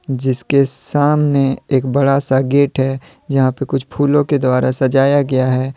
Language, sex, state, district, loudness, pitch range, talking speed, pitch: Hindi, male, Jharkhand, Deoghar, -15 LUFS, 130-140 Hz, 165 wpm, 135 Hz